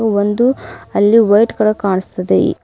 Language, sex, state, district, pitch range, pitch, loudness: Kannada, female, Karnataka, Bidar, 205-225 Hz, 215 Hz, -14 LUFS